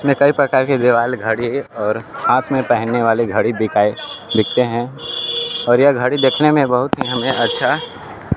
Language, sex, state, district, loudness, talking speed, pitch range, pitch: Hindi, male, Bihar, Kaimur, -16 LUFS, 180 wpm, 115-140 Hz, 125 Hz